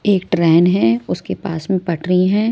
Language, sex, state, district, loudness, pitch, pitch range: Hindi, female, Maharashtra, Mumbai Suburban, -16 LUFS, 180 Hz, 165-190 Hz